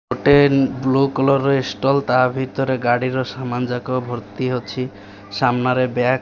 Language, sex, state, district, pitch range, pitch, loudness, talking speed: Odia, male, Odisha, Malkangiri, 125-135 Hz, 130 Hz, -19 LUFS, 145 wpm